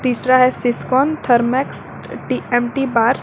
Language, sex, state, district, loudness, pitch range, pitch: Hindi, female, Jharkhand, Garhwa, -17 LUFS, 240-265 Hz, 255 Hz